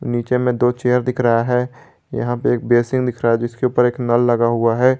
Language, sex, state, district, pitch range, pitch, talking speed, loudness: Hindi, male, Jharkhand, Garhwa, 120-125 Hz, 120 Hz, 250 wpm, -17 LUFS